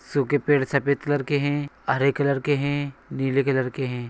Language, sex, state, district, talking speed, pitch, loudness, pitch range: Hindi, male, Chhattisgarh, Bilaspur, 205 wpm, 140 Hz, -24 LUFS, 135-145 Hz